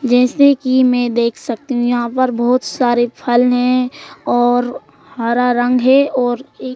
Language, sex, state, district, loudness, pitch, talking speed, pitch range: Hindi, female, Madhya Pradesh, Bhopal, -15 LUFS, 245 Hz, 160 wpm, 240-255 Hz